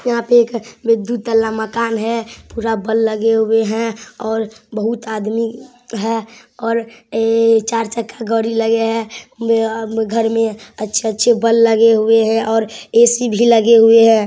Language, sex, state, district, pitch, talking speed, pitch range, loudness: Hindi, female, Bihar, Samastipur, 225 Hz, 170 wpm, 225-230 Hz, -15 LUFS